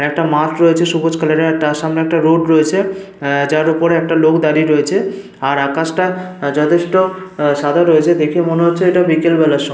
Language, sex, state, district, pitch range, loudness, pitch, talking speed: Bengali, male, Jharkhand, Sahebganj, 155-170 Hz, -14 LUFS, 160 Hz, 190 wpm